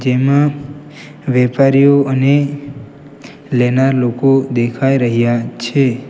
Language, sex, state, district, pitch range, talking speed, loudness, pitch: Gujarati, male, Gujarat, Valsad, 125-140 Hz, 80 wpm, -14 LUFS, 135 Hz